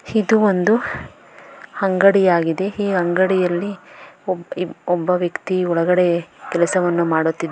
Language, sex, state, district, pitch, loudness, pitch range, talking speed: Kannada, female, Karnataka, Bangalore, 180 Hz, -18 LUFS, 175-195 Hz, 105 wpm